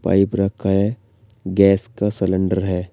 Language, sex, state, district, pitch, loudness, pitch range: Hindi, male, Uttar Pradesh, Shamli, 100 Hz, -19 LUFS, 95-105 Hz